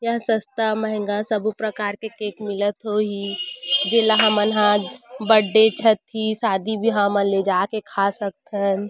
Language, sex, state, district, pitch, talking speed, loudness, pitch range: Chhattisgarhi, female, Chhattisgarh, Rajnandgaon, 210 Hz, 135 wpm, -20 LUFS, 200-220 Hz